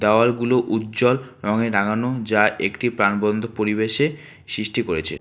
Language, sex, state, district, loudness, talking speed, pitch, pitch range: Bengali, male, West Bengal, Alipurduar, -21 LUFS, 115 wpm, 110 Hz, 105-120 Hz